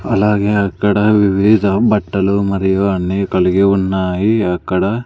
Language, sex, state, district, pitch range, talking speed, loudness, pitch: Telugu, male, Andhra Pradesh, Sri Satya Sai, 95-105 Hz, 105 wpm, -14 LUFS, 100 Hz